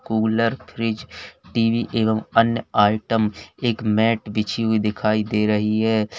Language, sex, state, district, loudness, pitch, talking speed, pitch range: Hindi, male, Uttar Pradesh, Lalitpur, -21 LUFS, 110 Hz, 135 wpm, 105-115 Hz